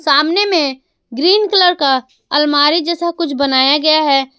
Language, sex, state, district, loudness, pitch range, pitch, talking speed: Hindi, female, Jharkhand, Garhwa, -13 LUFS, 275-340 Hz, 295 Hz, 150 wpm